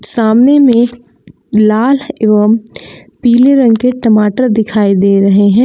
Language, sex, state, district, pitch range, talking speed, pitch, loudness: Hindi, female, Jharkhand, Palamu, 210-250 Hz, 125 wpm, 225 Hz, -10 LUFS